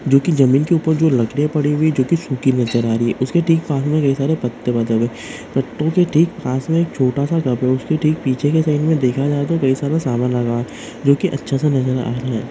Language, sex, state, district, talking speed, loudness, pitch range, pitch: Hindi, male, West Bengal, Dakshin Dinajpur, 240 wpm, -17 LUFS, 125-155 Hz, 140 Hz